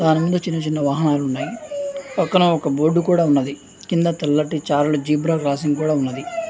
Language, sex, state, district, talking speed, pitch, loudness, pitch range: Telugu, male, Andhra Pradesh, Anantapur, 155 wpm, 155 Hz, -20 LUFS, 145-175 Hz